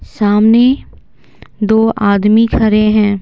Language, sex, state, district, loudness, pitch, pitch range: Hindi, female, Bihar, Patna, -11 LUFS, 215 Hz, 205-225 Hz